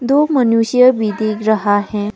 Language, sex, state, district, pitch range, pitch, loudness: Hindi, female, Arunachal Pradesh, Papum Pare, 210-250 Hz, 220 Hz, -14 LUFS